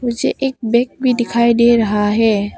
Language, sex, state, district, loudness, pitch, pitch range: Hindi, female, Arunachal Pradesh, Papum Pare, -15 LUFS, 235 Hz, 225-245 Hz